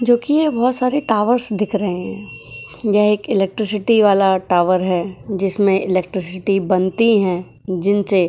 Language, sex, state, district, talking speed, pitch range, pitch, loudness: Hindi, female, Uttar Pradesh, Jyotiba Phule Nagar, 145 wpm, 185-220 Hz, 200 Hz, -17 LUFS